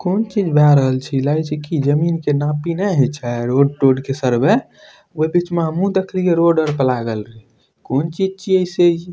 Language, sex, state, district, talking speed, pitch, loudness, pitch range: Maithili, male, Bihar, Madhepura, 225 wpm, 150 Hz, -17 LUFS, 135-175 Hz